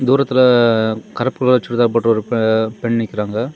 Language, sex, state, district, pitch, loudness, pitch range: Tamil, male, Tamil Nadu, Kanyakumari, 115 Hz, -16 LUFS, 110-125 Hz